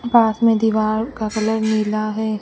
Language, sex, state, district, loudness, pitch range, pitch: Hindi, female, Rajasthan, Bikaner, -19 LUFS, 215-225 Hz, 220 Hz